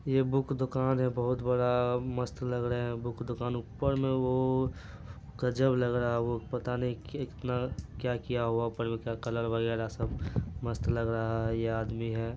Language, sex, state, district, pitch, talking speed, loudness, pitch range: Hindi, male, Bihar, Araria, 120 Hz, 180 wpm, -32 LUFS, 115-125 Hz